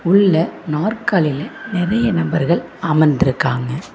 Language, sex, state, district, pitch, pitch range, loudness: Tamil, female, Tamil Nadu, Namakkal, 170 Hz, 150-195 Hz, -17 LUFS